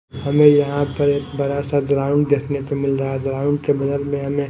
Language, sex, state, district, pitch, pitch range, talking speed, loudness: Hindi, female, Himachal Pradesh, Shimla, 140 Hz, 140-145 Hz, 225 wpm, -19 LUFS